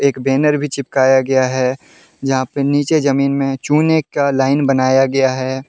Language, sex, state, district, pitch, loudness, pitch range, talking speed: Hindi, male, Jharkhand, Deoghar, 135 Hz, -15 LUFS, 130-140 Hz, 170 wpm